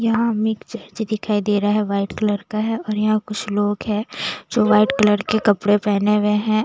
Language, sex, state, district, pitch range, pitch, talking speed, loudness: Hindi, female, Bihar, West Champaran, 205-215 Hz, 210 Hz, 225 wpm, -19 LUFS